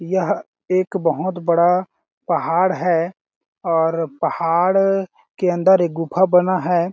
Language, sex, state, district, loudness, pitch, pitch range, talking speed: Hindi, male, Chhattisgarh, Balrampur, -18 LUFS, 175 Hz, 170-185 Hz, 120 wpm